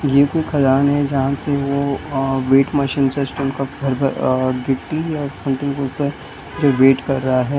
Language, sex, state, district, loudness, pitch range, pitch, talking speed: Hindi, male, Maharashtra, Mumbai Suburban, -18 LUFS, 135-140 Hz, 140 Hz, 205 wpm